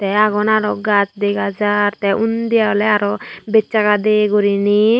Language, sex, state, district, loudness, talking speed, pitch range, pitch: Chakma, female, Tripura, Unakoti, -16 LUFS, 155 wpm, 205-215 Hz, 210 Hz